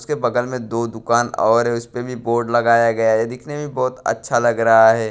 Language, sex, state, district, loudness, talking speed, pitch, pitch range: Hindi, male, Bihar, Katihar, -18 LUFS, 245 wpm, 120 Hz, 115-120 Hz